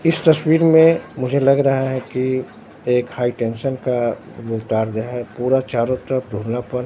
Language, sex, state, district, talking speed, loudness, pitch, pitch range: Hindi, male, Bihar, Katihar, 175 wpm, -19 LUFS, 125 Hz, 120-135 Hz